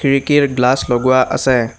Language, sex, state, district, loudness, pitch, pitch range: Assamese, male, Assam, Hailakandi, -14 LUFS, 130 Hz, 125-135 Hz